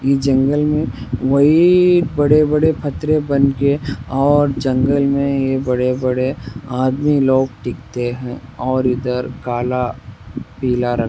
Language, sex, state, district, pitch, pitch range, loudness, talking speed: Hindi, male, Rajasthan, Nagaur, 135 Hz, 125-145 Hz, -16 LUFS, 125 wpm